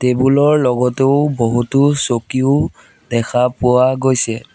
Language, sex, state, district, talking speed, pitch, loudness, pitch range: Assamese, male, Assam, Sonitpur, 105 wpm, 130 Hz, -15 LUFS, 125-135 Hz